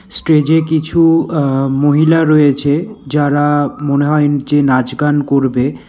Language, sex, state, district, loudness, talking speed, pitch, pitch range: Bengali, male, West Bengal, Alipurduar, -13 LUFS, 130 wpm, 145 Hz, 140-155 Hz